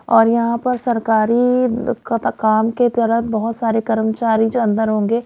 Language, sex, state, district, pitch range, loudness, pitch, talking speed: Hindi, female, Haryana, Jhajjar, 220-240 Hz, -17 LUFS, 230 Hz, 150 wpm